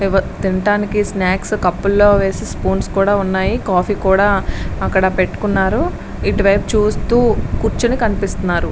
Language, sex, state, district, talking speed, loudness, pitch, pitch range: Telugu, female, Andhra Pradesh, Srikakulam, 110 wpm, -16 LUFS, 195 Hz, 190-205 Hz